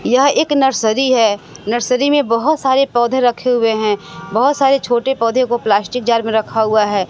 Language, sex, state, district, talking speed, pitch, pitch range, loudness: Hindi, female, Bihar, West Champaran, 195 wpm, 240 Hz, 220-265 Hz, -15 LUFS